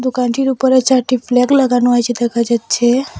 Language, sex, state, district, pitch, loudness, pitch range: Bengali, female, Assam, Hailakandi, 250 Hz, -14 LUFS, 240-260 Hz